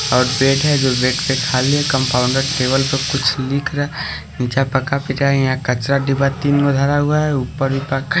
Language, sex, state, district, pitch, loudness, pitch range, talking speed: Hindi, male, Haryana, Rohtak, 135 Hz, -17 LUFS, 130-140 Hz, 205 wpm